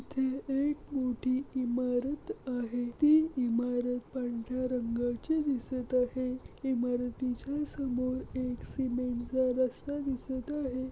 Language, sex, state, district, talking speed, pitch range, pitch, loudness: Marathi, female, Maharashtra, Aurangabad, 105 wpm, 245-270 Hz, 255 Hz, -33 LUFS